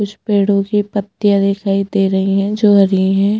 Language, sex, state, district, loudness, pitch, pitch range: Hindi, female, Chhattisgarh, Bastar, -14 LUFS, 200 Hz, 195-205 Hz